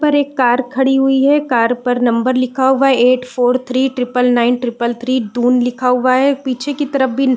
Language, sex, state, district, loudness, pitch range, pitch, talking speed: Hindi, female, Uttarakhand, Uttarkashi, -14 LUFS, 245-265 Hz, 255 Hz, 230 wpm